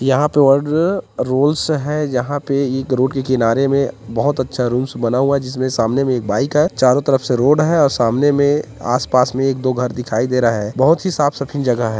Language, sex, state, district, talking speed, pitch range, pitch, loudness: Hindi, male, Chhattisgarh, Korba, 235 wpm, 125-145 Hz, 135 Hz, -16 LUFS